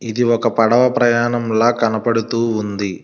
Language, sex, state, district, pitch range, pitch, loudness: Telugu, male, Telangana, Hyderabad, 110-120 Hz, 115 Hz, -16 LUFS